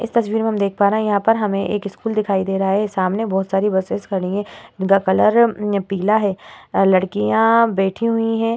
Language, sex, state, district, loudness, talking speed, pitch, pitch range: Hindi, female, Uttar Pradesh, Hamirpur, -18 LUFS, 225 wpm, 200 Hz, 195-220 Hz